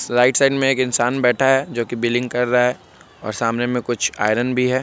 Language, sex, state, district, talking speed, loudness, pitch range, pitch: Hindi, male, Bihar, Begusarai, 250 wpm, -18 LUFS, 120-130 Hz, 125 Hz